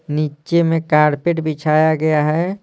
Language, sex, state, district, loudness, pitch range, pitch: Hindi, male, Bihar, Patna, -17 LUFS, 150-165 Hz, 155 Hz